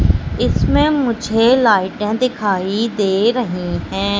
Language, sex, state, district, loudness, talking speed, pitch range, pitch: Hindi, female, Madhya Pradesh, Katni, -16 LUFS, 100 wpm, 195-240 Hz, 215 Hz